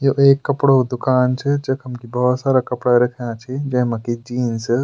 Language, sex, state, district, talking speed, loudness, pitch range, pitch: Garhwali, male, Uttarakhand, Tehri Garhwal, 210 wpm, -18 LUFS, 120-135 Hz, 125 Hz